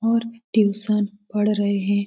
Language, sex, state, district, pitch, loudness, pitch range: Hindi, female, Bihar, Lakhisarai, 210 Hz, -22 LUFS, 205-225 Hz